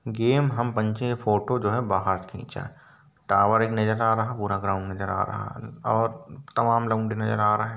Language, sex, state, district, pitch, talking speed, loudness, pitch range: Hindi, male, Uttar Pradesh, Varanasi, 110 Hz, 230 wpm, -25 LUFS, 105-120 Hz